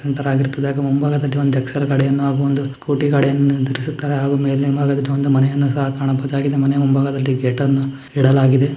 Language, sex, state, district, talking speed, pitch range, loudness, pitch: Kannada, male, Karnataka, Dharwad, 115 wpm, 135-140 Hz, -17 LUFS, 140 Hz